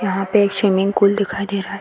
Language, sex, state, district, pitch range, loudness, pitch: Hindi, female, Bihar, Gaya, 195-200 Hz, -17 LUFS, 200 Hz